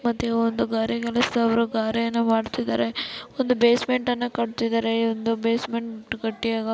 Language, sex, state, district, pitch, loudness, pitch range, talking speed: Kannada, female, Karnataka, Dharwad, 230 Hz, -24 LUFS, 225-235 Hz, 125 wpm